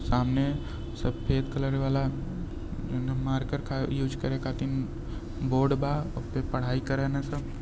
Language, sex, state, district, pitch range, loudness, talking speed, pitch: Hindi, male, Uttar Pradesh, Varanasi, 115-135 Hz, -30 LUFS, 120 wpm, 130 Hz